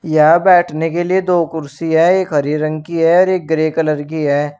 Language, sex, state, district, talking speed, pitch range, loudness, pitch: Hindi, male, Uttar Pradesh, Shamli, 235 wpm, 155-175 Hz, -14 LUFS, 160 Hz